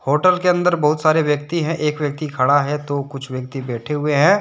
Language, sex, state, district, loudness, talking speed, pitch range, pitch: Hindi, male, Jharkhand, Deoghar, -19 LUFS, 230 wpm, 140-160 Hz, 150 Hz